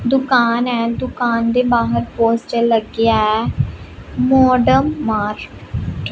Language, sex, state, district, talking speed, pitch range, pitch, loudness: Punjabi, female, Punjab, Pathankot, 110 wpm, 225-250 Hz, 235 Hz, -16 LUFS